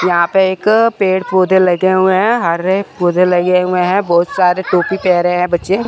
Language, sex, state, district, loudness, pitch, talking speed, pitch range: Hindi, male, Chandigarh, Chandigarh, -13 LUFS, 185 Hz, 195 wpm, 180-190 Hz